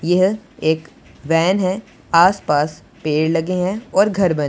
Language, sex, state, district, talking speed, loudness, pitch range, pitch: Hindi, male, Punjab, Pathankot, 160 wpm, -18 LUFS, 155-190 Hz, 175 Hz